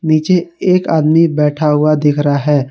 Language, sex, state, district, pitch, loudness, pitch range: Hindi, male, Jharkhand, Garhwa, 155 Hz, -13 LUFS, 150-165 Hz